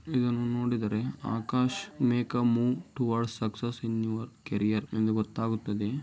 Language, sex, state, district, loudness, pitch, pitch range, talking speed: Kannada, male, Karnataka, Dharwad, -30 LUFS, 115 Hz, 110-120 Hz, 100 wpm